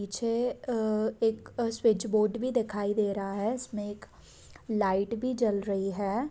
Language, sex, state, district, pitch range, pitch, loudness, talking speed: Hindi, female, Bihar, Sitamarhi, 205-235 Hz, 220 Hz, -30 LUFS, 145 wpm